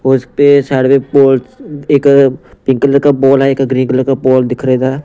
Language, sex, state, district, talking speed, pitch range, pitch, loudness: Hindi, male, Punjab, Pathankot, 260 wpm, 130-140 Hz, 135 Hz, -10 LUFS